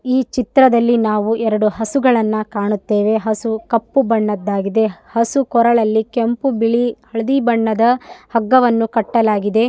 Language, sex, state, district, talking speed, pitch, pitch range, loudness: Kannada, female, Karnataka, Raichur, 105 wpm, 230 Hz, 215-240 Hz, -16 LUFS